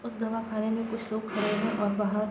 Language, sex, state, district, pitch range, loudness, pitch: Hindi, female, Bihar, Gopalganj, 210-225 Hz, -30 LUFS, 215 Hz